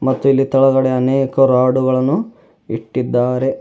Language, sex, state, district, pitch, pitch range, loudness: Kannada, male, Karnataka, Bidar, 130 Hz, 125-135 Hz, -15 LUFS